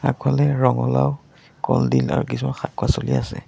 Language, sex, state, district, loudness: Assamese, male, Assam, Sonitpur, -21 LUFS